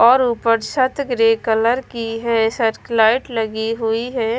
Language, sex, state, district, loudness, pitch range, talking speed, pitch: Hindi, female, Himachal Pradesh, Shimla, -18 LUFS, 225-245 Hz, 165 wpm, 230 Hz